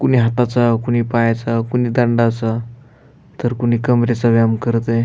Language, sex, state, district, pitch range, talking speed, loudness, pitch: Marathi, male, Maharashtra, Aurangabad, 115-125 Hz, 130 wpm, -17 LUFS, 120 Hz